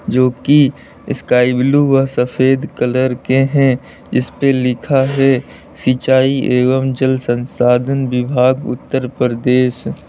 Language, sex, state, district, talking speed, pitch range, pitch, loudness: Hindi, male, Uttar Pradesh, Lalitpur, 120 wpm, 125-135 Hz, 130 Hz, -14 LUFS